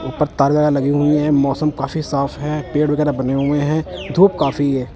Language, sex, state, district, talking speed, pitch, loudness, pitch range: Hindi, male, Punjab, Kapurthala, 205 wpm, 145 Hz, -17 LUFS, 140-150 Hz